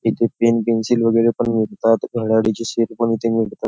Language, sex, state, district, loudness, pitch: Marathi, male, Maharashtra, Nagpur, -18 LUFS, 115 Hz